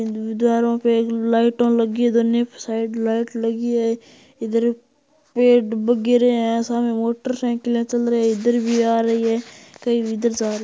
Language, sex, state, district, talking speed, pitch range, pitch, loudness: Hindi, male, Rajasthan, Churu, 170 wpm, 230-240 Hz, 235 Hz, -20 LUFS